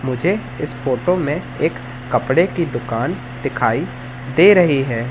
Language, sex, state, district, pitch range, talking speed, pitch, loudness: Hindi, male, Madhya Pradesh, Katni, 125-160 Hz, 140 wpm, 130 Hz, -18 LUFS